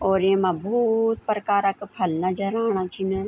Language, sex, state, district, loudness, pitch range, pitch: Garhwali, female, Uttarakhand, Tehri Garhwal, -23 LUFS, 190-220 Hz, 195 Hz